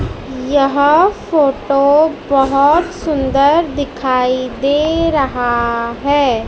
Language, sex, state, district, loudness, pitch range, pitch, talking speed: Hindi, male, Madhya Pradesh, Dhar, -14 LUFS, 260-300 Hz, 280 Hz, 75 wpm